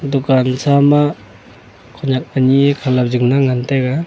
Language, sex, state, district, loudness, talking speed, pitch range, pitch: Wancho, male, Arunachal Pradesh, Longding, -14 LUFS, 160 wpm, 125-140 Hz, 130 Hz